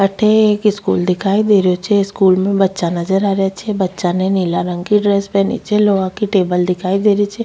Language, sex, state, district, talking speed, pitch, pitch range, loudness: Rajasthani, female, Rajasthan, Nagaur, 235 wpm, 195 Hz, 185-205 Hz, -15 LUFS